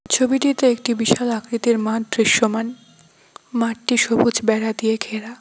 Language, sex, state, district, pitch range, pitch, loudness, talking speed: Bengali, female, West Bengal, Cooch Behar, 225-240 Hz, 230 Hz, -19 LUFS, 120 wpm